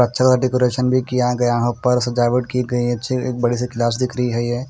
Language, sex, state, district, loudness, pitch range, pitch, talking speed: Hindi, male, Punjab, Kapurthala, -19 LUFS, 120-125 Hz, 125 Hz, 240 wpm